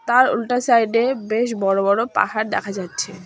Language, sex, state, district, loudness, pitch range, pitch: Bengali, female, West Bengal, Cooch Behar, -19 LUFS, 200-245 Hz, 225 Hz